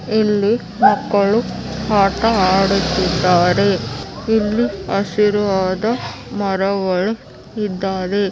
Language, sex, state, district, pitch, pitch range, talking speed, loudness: Kannada, female, Karnataka, Bellary, 200 Hz, 190-210 Hz, 70 wpm, -17 LUFS